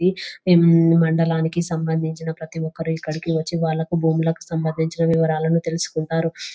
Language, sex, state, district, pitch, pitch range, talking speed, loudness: Telugu, female, Telangana, Nalgonda, 165 Hz, 160-165 Hz, 110 wpm, -20 LUFS